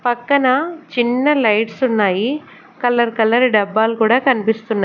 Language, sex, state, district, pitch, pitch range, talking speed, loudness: Telugu, female, Andhra Pradesh, Sri Satya Sai, 240 Hz, 220-260 Hz, 110 wpm, -16 LUFS